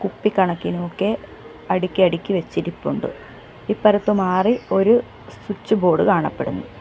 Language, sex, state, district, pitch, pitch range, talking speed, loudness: Malayalam, female, Kerala, Kollam, 195 Hz, 185-210 Hz, 90 wpm, -20 LUFS